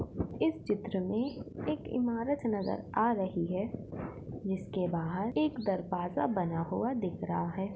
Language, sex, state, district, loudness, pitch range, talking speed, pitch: Hindi, female, Maharashtra, Sindhudurg, -34 LUFS, 180-230 Hz, 140 wpm, 195 Hz